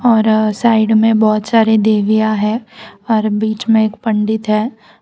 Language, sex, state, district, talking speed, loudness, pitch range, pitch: Hindi, female, Gujarat, Valsad, 155 wpm, -14 LUFS, 215-225 Hz, 220 Hz